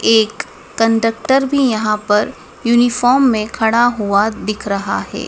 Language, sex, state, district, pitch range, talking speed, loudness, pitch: Hindi, female, Madhya Pradesh, Dhar, 215-245 Hz, 135 wpm, -15 LUFS, 225 Hz